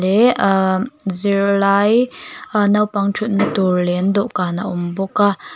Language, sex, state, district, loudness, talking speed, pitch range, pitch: Mizo, female, Mizoram, Aizawl, -17 LUFS, 150 wpm, 190-210 Hz, 200 Hz